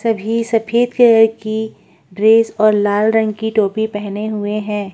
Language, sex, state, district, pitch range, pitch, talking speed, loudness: Hindi, female, Uttar Pradesh, Budaun, 210-225 Hz, 220 Hz, 160 wpm, -15 LUFS